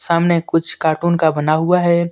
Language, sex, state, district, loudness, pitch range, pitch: Hindi, male, Jharkhand, Deoghar, -16 LUFS, 160-170 Hz, 165 Hz